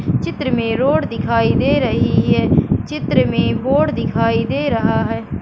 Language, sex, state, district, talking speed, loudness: Hindi, female, Madhya Pradesh, Katni, 155 wpm, -16 LUFS